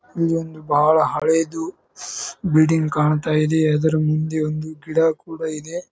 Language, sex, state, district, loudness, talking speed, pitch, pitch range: Kannada, male, Karnataka, Bijapur, -20 LUFS, 130 wpm, 155 Hz, 155-160 Hz